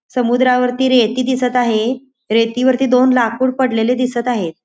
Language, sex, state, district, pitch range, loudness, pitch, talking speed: Marathi, female, Goa, North and South Goa, 240-255 Hz, -15 LUFS, 250 Hz, 140 wpm